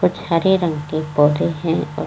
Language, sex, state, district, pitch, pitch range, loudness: Hindi, female, Uttar Pradesh, Varanasi, 155 Hz, 150-165 Hz, -18 LUFS